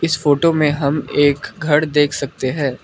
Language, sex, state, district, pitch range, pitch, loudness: Hindi, male, Arunachal Pradesh, Lower Dibang Valley, 140-155 Hz, 145 Hz, -17 LUFS